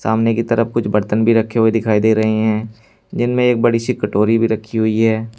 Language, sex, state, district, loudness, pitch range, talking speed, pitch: Hindi, male, Uttar Pradesh, Saharanpur, -16 LUFS, 110-115 Hz, 245 wpm, 110 Hz